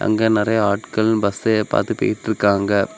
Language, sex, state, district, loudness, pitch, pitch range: Tamil, male, Tamil Nadu, Kanyakumari, -18 LUFS, 110 Hz, 100-110 Hz